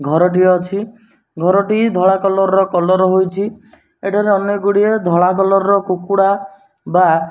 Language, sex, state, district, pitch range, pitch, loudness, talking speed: Odia, male, Odisha, Nuapada, 185-200 Hz, 195 Hz, -14 LUFS, 145 wpm